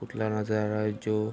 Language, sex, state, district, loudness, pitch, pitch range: Hindi, male, Uttar Pradesh, Varanasi, -29 LUFS, 105 Hz, 105-110 Hz